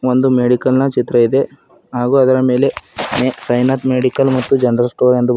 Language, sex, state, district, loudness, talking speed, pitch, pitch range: Kannada, male, Karnataka, Bidar, -14 LUFS, 180 wpm, 130 Hz, 125-130 Hz